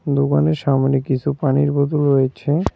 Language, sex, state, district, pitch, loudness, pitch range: Bengali, male, West Bengal, Cooch Behar, 140 Hz, -18 LUFS, 135-145 Hz